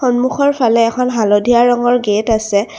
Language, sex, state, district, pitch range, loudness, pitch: Assamese, female, Assam, Kamrup Metropolitan, 220-245 Hz, -13 LUFS, 240 Hz